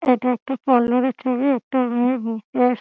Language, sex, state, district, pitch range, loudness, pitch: Bengali, female, West Bengal, Dakshin Dinajpur, 240-260 Hz, -20 LUFS, 250 Hz